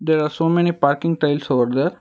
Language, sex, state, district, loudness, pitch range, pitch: English, male, Karnataka, Bangalore, -19 LUFS, 140-165 Hz, 150 Hz